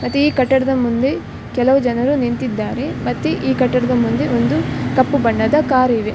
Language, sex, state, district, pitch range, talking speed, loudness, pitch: Kannada, female, Karnataka, Dakshina Kannada, 240-265 Hz, 155 wpm, -17 LUFS, 255 Hz